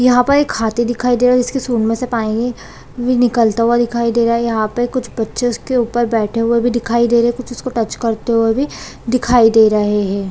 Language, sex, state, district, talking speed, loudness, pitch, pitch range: Hindi, female, Chhattisgarh, Balrampur, 250 wpm, -15 LUFS, 235 Hz, 225-245 Hz